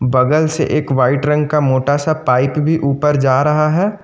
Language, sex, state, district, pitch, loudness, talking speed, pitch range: Hindi, male, Jharkhand, Ranchi, 150 Hz, -14 LUFS, 210 wpm, 135-155 Hz